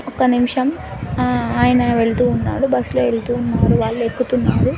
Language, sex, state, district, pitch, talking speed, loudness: Telugu, female, Andhra Pradesh, Anantapur, 230 Hz, 140 wpm, -17 LUFS